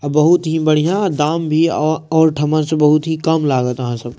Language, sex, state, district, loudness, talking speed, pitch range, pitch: Maithili, male, Bihar, Madhepura, -15 LUFS, 230 wpm, 150-160 Hz, 155 Hz